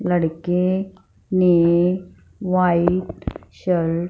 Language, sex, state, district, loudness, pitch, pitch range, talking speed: Hindi, female, Punjab, Fazilka, -20 LUFS, 180 Hz, 170-185 Hz, 75 wpm